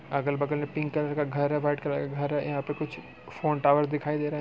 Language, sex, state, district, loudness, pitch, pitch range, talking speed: Hindi, male, Bihar, Muzaffarpur, -28 LUFS, 145 Hz, 145-150 Hz, 270 wpm